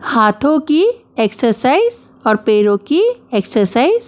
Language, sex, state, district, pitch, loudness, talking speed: Hindi, female, Maharashtra, Mumbai Suburban, 245 Hz, -14 LUFS, 120 wpm